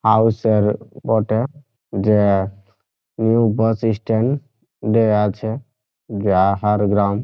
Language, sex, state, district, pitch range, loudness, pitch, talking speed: Bengali, male, West Bengal, Jhargram, 105-115 Hz, -18 LUFS, 110 Hz, 75 wpm